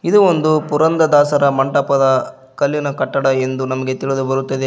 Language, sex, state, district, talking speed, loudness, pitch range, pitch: Kannada, male, Karnataka, Koppal, 140 wpm, -16 LUFS, 135-150 Hz, 140 Hz